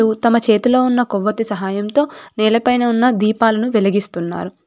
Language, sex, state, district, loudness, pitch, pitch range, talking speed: Telugu, female, Telangana, Komaram Bheem, -16 LUFS, 225 Hz, 210-245 Hz, 115 wpm